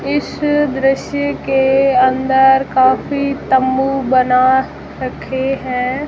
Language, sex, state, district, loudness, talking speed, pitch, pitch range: Hindi, female, Rajasthan, Jaisalmer, -14 LUFS, 90 wpm, 265 Hz, 260-280 Hz